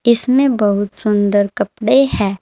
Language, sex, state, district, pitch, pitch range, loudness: Hindi, female, Uttar Pradesh, Saharanpur, 210 Hz, 200-250 Hz, -14 LUFS